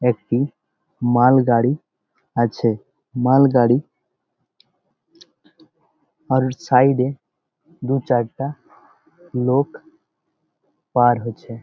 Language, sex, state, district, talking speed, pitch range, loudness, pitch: Bengali, male, West Bengal, Malda, 60 wpm, 120-140 Hz, -19 LUFS, 125 Hz